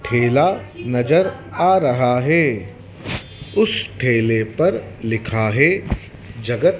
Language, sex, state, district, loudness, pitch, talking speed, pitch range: Hindi, male, Madhya Pradesh, Dhar, -18 LUFS, 120 Hz, 95 wpm, 115-150 Hz